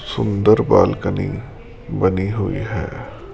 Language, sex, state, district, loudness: Hindi, male, Rajasthan, Jaipur, -19 LUFS